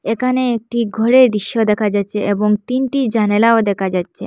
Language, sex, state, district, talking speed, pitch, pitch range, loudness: Bengali, female, Assam, Hailakandi, 155 wpm, 220 Hz, 210-240 Hz, -15 LUFS